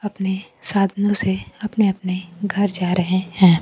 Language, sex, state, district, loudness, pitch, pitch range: Hindi, female, Bihar, Kaimur, -20 LUFS, 190 Hz, 185-205 Hz